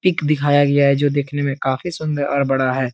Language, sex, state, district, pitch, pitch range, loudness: Hindi, male, Uttar Pradesh, Etah, 145 Hz, 135-145 Hz, -18 LUFS